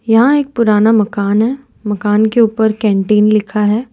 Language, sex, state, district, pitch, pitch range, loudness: Hindi, female, Gujarat, Valsad, 220 Hz, 210-230 Hz, -13 LUFS